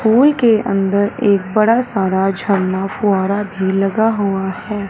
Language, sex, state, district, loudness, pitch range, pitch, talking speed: Hindi, female, Punjab, Fazilka, -16 LUFS, 195-220 Hz, 200 Hz, 145 wpm